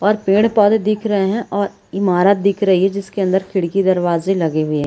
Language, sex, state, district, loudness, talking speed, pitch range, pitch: Hindi, female, Bihar, Gaya, -16 LUFS, 210 wpm, 185-205 Hz, 195 Hz